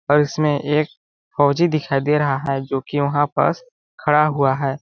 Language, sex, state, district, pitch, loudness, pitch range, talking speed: Hindi, male, Chhattisgarh, Balrampur, 145 Hz, -19 LUFS, 140-150 Hz, 185 wpm